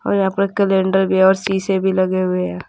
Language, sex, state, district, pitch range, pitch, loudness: Hindi, female, Uttar Pradesh, Saharanpur, 185-195 Hz, 190 Hz, -17 LUFS